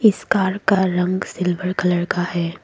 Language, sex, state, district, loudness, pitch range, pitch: Hindi, female, Assam, Kamrup Metropolitan, -20 LUFS, 180-190 Hz, 185 Hz